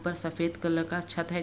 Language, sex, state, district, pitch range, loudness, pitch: Hindi, female, Bihar, Begusarai, 170-175 Hz, -31 LUFS, 170 Hz